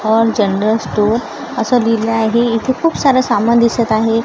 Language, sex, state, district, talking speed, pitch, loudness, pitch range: Marathi, female, Maharashtra, Gondia, 170 wpm, 225 Hz, -14 LUFS, 220-240 Hz